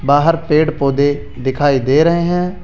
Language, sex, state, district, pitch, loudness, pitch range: Hindi, male, Rajasthan, Jaipur, 145 Hz, -14 LUFS, 140-165 Hz